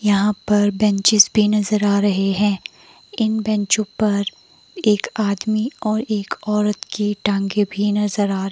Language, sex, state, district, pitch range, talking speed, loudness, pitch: Hindi, female, Himachal Pradesh, Shimla, 200-215 Hz, 150 wpm, -19 LUFS, 210 Hz